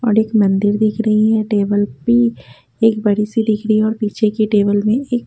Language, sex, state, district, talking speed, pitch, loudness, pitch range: Hindi, female, Haryana, Jhajjar, 230 wpm, 215 Hz, -16 LUFS, 205-220 Hz